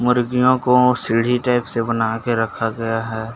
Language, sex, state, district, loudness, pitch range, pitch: Hindi, male, Chhattisgarh, Bastar, -18 LUFS, 115-125 Hz, 115 Hz